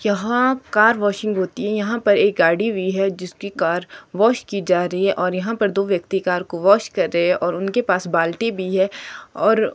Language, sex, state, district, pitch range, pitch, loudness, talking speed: Hindi, female, Himachal Pradesh, Shimla, 180-215 Hz, 195 Hz, -19 LUFS, 220 wpm